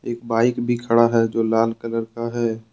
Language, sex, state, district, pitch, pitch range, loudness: Hindi, male, Jharkhand, Deoghar, 115 Hz, 115-120 Hz, -20 LUFS